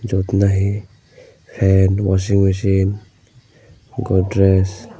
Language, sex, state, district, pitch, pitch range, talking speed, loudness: Chakma, male, Tripura, Unakoti, 100 Hz, 95-105 Hz, 70 wpm, -17 LUFS